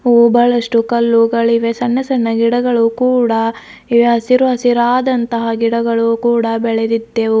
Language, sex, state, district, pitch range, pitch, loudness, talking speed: Kannada, female, Karnataka, Bidar, 230-245 Hz, 235 Hz, -14 LUFS, 105 wpm